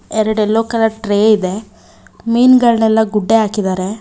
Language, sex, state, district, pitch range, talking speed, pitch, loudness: Kannada, female, Karnataka, Bangalore, 210-225 Hz, 120 wpm, 220 Hz, -13 LUFS